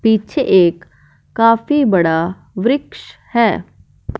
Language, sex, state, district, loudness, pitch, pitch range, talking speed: Hindi, male, Punjab, Fazilka, -15 LUFS, 220 Hz, 180-230 Hz, 85 wpm